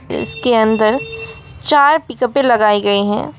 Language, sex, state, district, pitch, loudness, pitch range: Hindi, female, West Bengal, Alipurduar, 220 Hz, -14 LUFS, 205-275 Hz